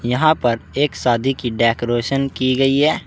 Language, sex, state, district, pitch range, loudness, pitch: Hindi, male, Uttar Pradesh, Saharanpur, 120-135 Hz, -18 LUFS, 130 Hz